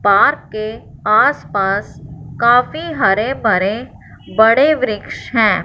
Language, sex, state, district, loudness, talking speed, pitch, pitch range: Hindi, female, Punjab, Fazilka, -15 LUFS, 95 wpm, 220 Hz, 195-265 Hz